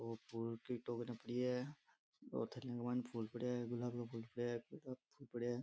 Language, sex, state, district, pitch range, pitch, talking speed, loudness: Rajasthani, male, Rajasthan, Nagaur, 115-125 Hz, 120 Hz, 235 wpm, -46 LUFS